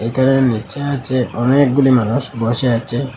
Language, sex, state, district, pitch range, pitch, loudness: Bengali, male, Assam, Hailakandi, 115-135 Hz, 130 Hz, -16 LUFS